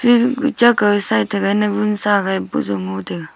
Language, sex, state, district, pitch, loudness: Wancho, female, Arunachal Pradesh, Longding, 205 Hz, -17 LUFS